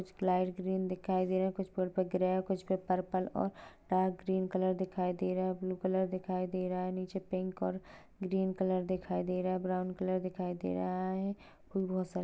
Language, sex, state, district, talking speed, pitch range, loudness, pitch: Hindi, female, Goa, North and South Goa, 195 wpm, 185-190 Hz, -35 LUFS, 185 Hz